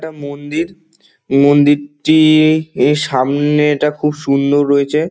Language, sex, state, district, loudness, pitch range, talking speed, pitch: Bengali, male, West Bengal, Dakshin Dinajpur, -13 LUFS, 145-155 Hz, 95 wpm, 150 Hz